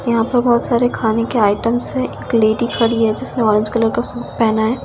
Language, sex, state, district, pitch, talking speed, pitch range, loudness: Hindi, female, Delhi, New Delhi, 230 Hz, 235 wpm, 220-240 Hz, -16 LUFS